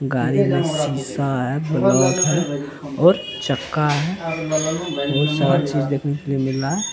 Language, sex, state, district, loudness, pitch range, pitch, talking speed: Hindi, male, Bihar, Araria, -20 LUFS, 140-155 Hz, 145 Hz, 145 wpm